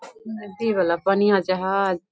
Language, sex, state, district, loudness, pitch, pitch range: Hindi, female, Bihar, Begusarai, -21 LUFS, 195 Hz, 185-215 Hz